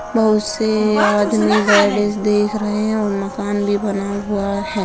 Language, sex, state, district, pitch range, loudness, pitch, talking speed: Hindi, female, Bihar, Saran, 205-215 Hz, -17 LUFS, 210 Hz, 150 wpm